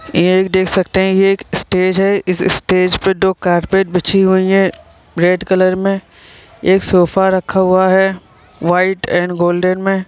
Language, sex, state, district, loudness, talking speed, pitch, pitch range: Hindi, male, Bihar, Vaishali, -13 LUFS, 165 wpm, 185 Hz, 180-190 Hz